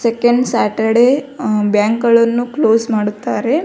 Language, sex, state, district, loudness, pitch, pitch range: Kannada, female, Karnataka, Belgaum, -14 LUFS, 230 Hz, 220-245 Hz